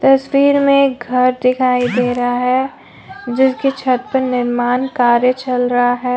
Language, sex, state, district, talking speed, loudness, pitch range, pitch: Hindi, female, Jharkhand, Deoghar, 145 wpm, -15 LUFS, 245-265 Hz, 250 Hz